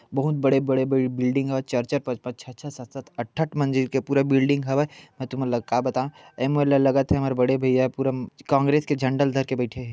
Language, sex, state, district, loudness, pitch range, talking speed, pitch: Chhattisgarhi, male, Chhattisgarh, Bilaspur, -23 LUFS, 130-140 Hz, 215 wpm, 135 Hz